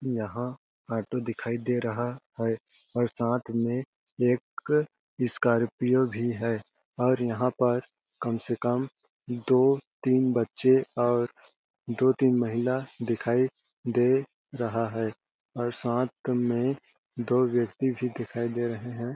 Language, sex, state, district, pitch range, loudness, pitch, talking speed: Hindi, male, Chhattisgarh, Balrampur, 120-130 Hz, -28 LUFS, 120 Hz, 120 wpm